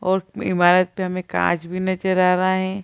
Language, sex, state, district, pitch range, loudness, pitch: Hindi, female, Bihar, Gaya, 180-185 Hz, -20 LUFS, 185 Hz